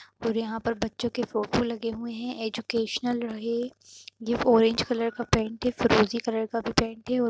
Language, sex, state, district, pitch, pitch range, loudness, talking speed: Hindi, female, Uttar Pradesh, Jyotiba Phule Nagar, 230 Hz, 225-240 Hz, -27 LUFS, 195 wpm